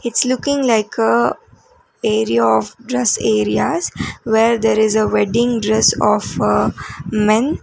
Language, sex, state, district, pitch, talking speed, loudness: English, female, Karnataka, Bangalore, 215 Hz, 135 wpm, -16 LUFS